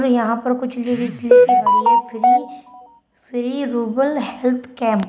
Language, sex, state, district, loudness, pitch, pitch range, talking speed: Hindi, female, Uttar Pradesh, Shamli, -17 LUFS, 245 Hz, 240-255 Hz, 140 wpm